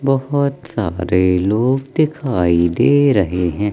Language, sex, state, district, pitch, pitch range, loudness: Hindi, male, Madhya Pradesh, Katni, 115 Hz, 90-140 Hz, -16 LUFS